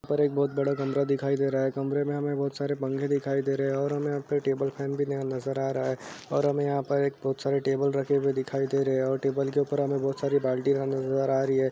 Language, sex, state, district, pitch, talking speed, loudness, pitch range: Hindi, male, Uttar Pradesh, Jalaun, 140 Hz, 285 wpm, -28 LUFS, 135-140 Hz